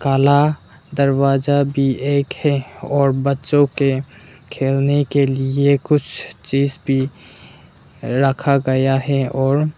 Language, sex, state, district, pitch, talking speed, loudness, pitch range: Hindi, male, Arunachal Pradesh, Lower Dibang Valley, 140 Hz, 115 wpm, -17 LUFS, 135-140 Hz